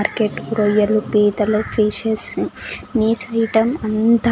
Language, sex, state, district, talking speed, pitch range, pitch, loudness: Telugu, female, Andhra Pradesh, Sri Satya Sai, 95 wpm, 210-225 Hz, 220 Hz, -18 LUFS